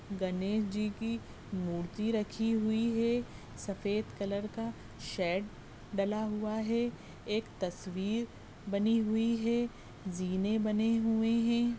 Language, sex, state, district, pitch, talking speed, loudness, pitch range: Hindi, female, Goa, North and South Goa, 215 Hz, 115 wpm, -34 LUFS, 200-225 Hz